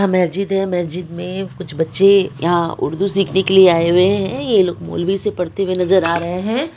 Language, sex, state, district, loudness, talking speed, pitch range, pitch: Maithili, male, Bihar, Supaul, -16 LUFS, 220 wpm, 175-195 Hz, 185 Hz